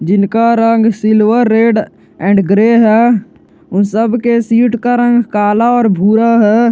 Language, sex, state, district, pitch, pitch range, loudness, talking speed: Hindi, male, Jharkhand, Garhwa, 225 Hz, 210-235 Hz, -11 LUFS, 150 wpm